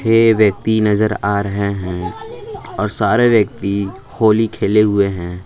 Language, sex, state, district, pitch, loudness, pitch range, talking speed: Hindi, male, Jharkhand, Palamu, 105 Hz, -16 LUFS, 100-115 Hz, 145 wpm